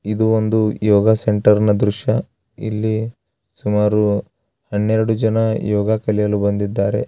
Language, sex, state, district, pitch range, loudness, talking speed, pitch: Kannada, male, Karnataka, Raichur, 105-110 Hz, -18 LUFS, 110 wpm, 105 Hz